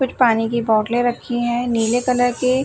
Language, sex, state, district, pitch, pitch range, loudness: Hindi, female, Bihar, Gopalganj, 245 Hz, 235-250 Hz, -18 LUFS